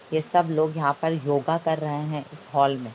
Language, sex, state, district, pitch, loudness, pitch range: Hindi, female, Bihar, Begusarai, 150 Hz, -25 LUFS, 140-160 Hz